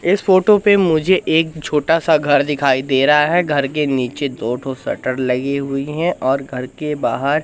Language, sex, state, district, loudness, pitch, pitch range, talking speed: Hindi, male, Madhya Pradesh, Katni, -16 LUFS, 145 Hz, 135-160 Hz, 195 wpm